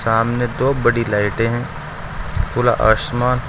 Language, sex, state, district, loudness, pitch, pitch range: Hindi, male, Uttar Pradesh, Saharanpur, -18 LUFS, 120 Hz, 115-125 Hz